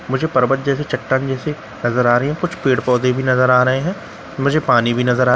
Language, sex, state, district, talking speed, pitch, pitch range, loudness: Hindi, male, Bihar, Katihar, 245 wpm, 130 Hz, 125-140 Hz, -17 LUFS